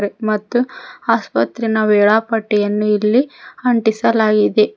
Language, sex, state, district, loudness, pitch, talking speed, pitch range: Kannada, female, Karnataka, Koppal, -16 LUFS, 220 Hz, 65 wpm, 210-230 Hz